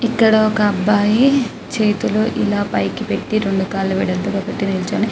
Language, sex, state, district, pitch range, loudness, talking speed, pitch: Telugu, female, Telangana, Karimnagar, 200-220 Hz, -17 LUFS, 150 wpm, 210 Hz